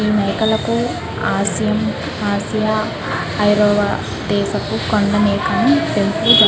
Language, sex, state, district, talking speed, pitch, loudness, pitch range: Telugu, female, Andhra Pradesh, Krishna, 65 wpm, 210 Hz, -17 LUFS, 205-220 Hz